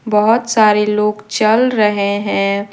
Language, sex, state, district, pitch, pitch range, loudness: Hindi, female, Jharkhand, Deoghar, 210 Hz, 205-220 Hz, -14 LUFS